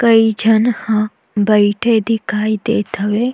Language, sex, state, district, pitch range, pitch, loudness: Chhattisgarhi, female, Chhattisgarh, Jashpur, 210-225 Hz, 220 Hz, -15 LUFS